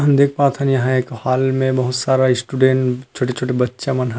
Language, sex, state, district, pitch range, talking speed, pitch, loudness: Chhattisgarhi, male, Chhattisgarh, Rajnandgaon, 125-135 Hz, 230 wpm, 130 Hz, -17 LUFS